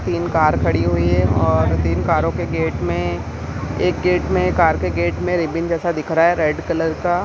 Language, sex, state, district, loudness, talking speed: Hindi, female, Maharashtra, Mumbai Suburban, -18 LUFS, 215 wpm